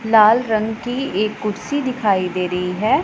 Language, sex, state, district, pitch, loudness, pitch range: Hindi, female, Punjab, Pathankot, 215 Hz, -19 LUFS, 200-235 Hz